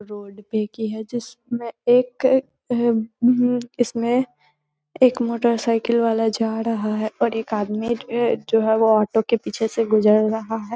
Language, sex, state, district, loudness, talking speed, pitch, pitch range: Hindi, female, Bihar, Muzaffarpur, -21 LUFS, 175 wpm, 225 Hz, 215-240 Hz